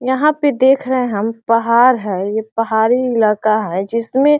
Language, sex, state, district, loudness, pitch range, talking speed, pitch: Hindi, female, Bihar, Sitamarhi, -15 LUFS, 215-260 Hz, 175 wpm, 230 Hz